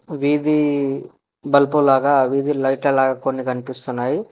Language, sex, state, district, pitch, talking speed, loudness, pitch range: Telugu, male, Telangana, Hyderabad, 135 Hz, 95 wpm, -19 LUFS, 130-145 Hz